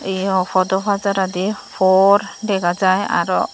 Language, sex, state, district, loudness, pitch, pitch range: Chakma, female, Tripura, Dhalai, -17 LUFS, 190 Hz, 185-200 Hz